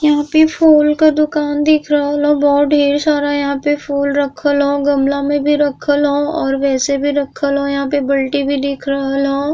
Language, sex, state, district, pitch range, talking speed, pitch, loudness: Bhojpuri, female, Uttar Pradesh, Gorakhpur, 280-295 Hz, 205 wpm, 285 Hz, -14 LUFS